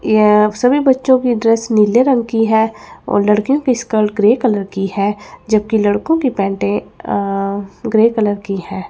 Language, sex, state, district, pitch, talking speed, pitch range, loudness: Hindi, female, Chandigarh, Chandigarh, 215 Hz, 170 wpm, 205-235 Hz, -15 LUFS